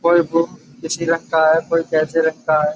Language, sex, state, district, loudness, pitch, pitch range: Hindi, male, Uttar Pradesh, Budaun, -18 LUFS, 165 Hz, 155-165 Hz